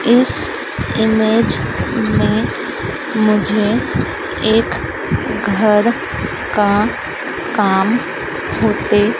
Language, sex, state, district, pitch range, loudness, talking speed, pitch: Hindi, female, Madhya Pradesh, Dhar, 210-230 Hz, -16 LUFS, 60 wpm, 215 Hz